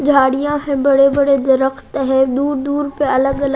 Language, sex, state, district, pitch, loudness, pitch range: Hindi, female, Haryana, Jhajjar, 275 Hz, -15 LUFS, 270-285 Hz